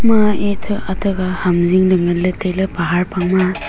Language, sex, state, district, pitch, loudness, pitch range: Wancho, female, Arunachal Pradesh, Longding, 185 Hz, -16 LUFS, 180-200 Hz